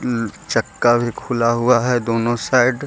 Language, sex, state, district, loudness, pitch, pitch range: Hindi, male, Bihar, Gaya, -18 LUFS, 120 Hz, 115-125 Hz